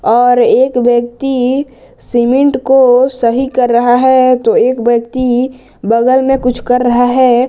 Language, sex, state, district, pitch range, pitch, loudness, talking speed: Hindi, male, Jharkhand, Garhwa, 240-260 Hz, 250 Hz, -11 LUFS, 145 wpm